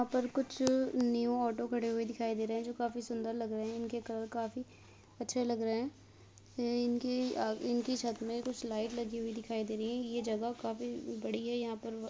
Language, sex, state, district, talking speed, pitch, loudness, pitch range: Hindi, female, Uttar Pradesh, Hamirpur, 230 wpm, 235 Hz, -36 LUFS, 225-245 Hz